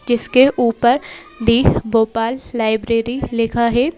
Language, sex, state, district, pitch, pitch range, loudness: Hindi, female, Madhya Pradesh, Bhopal, 235 Hz, 230-255 Hz, -16 LUFS